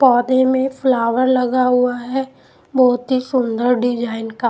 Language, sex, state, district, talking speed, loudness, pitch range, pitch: Hindi, female, Punjab, Pathankot, 145 wpm, -17 LUFS, 245-260 Hz, 250 Hz